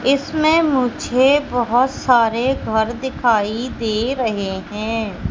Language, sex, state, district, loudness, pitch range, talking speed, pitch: Hindi, female, Madhya Pradesh, Katni, -18 LUFS, 220-265 Hz, 100 wpm, 245 Hz